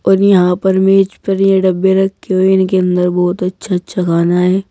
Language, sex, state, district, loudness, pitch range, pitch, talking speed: Hindi, female, Uttar Pradesh, Saharanpur, -13 LUFS, 180-195 Hz, 190 Hz, 215 wpm